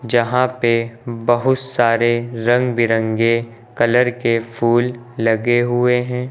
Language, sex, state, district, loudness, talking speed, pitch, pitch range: Hindi, male, Uttar Pradesh, Lucknow, -17 LUFS, 115 wpm, 120 Hz, 115-125 Hz